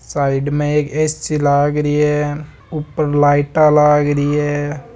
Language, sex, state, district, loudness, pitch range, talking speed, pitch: Marwari, male, Rajasthan, Nagaur, -15 LUFS, 145-150 Hz, 145 wpm, 150 Hz